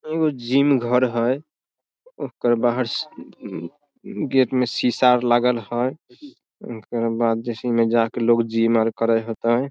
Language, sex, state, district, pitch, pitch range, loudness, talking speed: Maithili, male, Bihar, Samastipur, 120 Hz, 115-130 Hz, -21 LUFS, 135 wpm